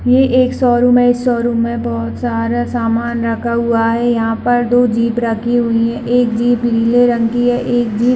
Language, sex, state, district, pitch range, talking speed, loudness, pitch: Hindi, female, Chhattisgarh, Bilaspur, 230-245 Hz, 215 wpm, -14 LUFS, 240 Hz